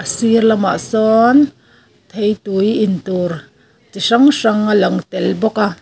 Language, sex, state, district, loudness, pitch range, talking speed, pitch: Mizo, female, Mizoram, Aizawl, -14 LUFS, 195-225 Hz, 145 wpm, 215 Hz